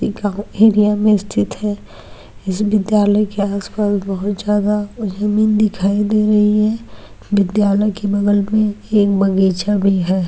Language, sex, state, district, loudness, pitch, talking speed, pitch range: Hindi, female, Rajasthan, Nagaur, -16 LUFS, 205 Hz, 125 wpm, 195-210 Hz